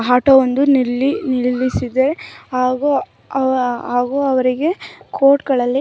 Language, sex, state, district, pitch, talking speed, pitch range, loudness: Kannada, female, Karnataka, Mysore, 260 Hz, 60 wpm, 250-275 Hz, -16 LUFS